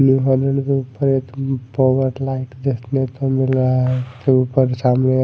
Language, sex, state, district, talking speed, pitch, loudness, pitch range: Hindi, male, Odisha, Malkangiri, 80 wpm, 130 Hz, -18 LUFS, 130-135 Hz